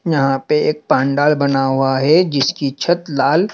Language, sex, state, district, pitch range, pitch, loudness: Hindi, male, Madhya Pradesh, Dhar, 135-160 Hz, 145 Hz, -16 LUFS